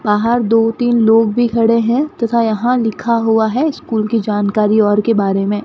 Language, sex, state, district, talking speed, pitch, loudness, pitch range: Hindi, female, Rajasthan, Bikaner, 200 wpm, 225 Hz, -14 LUFS, 215-235 Hz